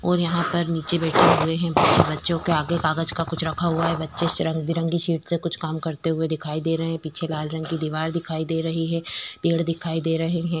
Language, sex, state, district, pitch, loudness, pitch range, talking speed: Hindi, female, Uttarakhand, Tehri Garhwal, 165 Hz, -23 LUFS, 160-170 Hz, 250 wpm